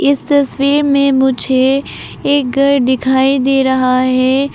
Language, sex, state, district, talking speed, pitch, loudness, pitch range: Hindi, female, Arunachal Pradesh, Papum Pare, 130 wpm, 270 Hz, -12 LUFS, 260-280 Hz